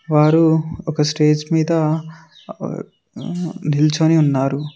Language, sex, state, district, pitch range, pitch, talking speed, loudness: Telugu, male, Telangana, Mahabubabad, 150-165 Hz, 160 Hz, 75 wpm, -17 LUFS